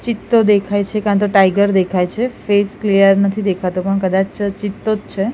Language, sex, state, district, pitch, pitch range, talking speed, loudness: Gujarati, female, Gujarat, Gandhinagar, 200 Hz, 195-210 Hz, 190 wpm, -15 LUFS